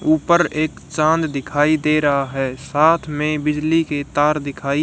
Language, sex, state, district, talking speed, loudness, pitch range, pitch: Hindi, male, Haryana, Rohtak, 160 wpm, -18 LUFS, 145-155 Hz, 150 Hz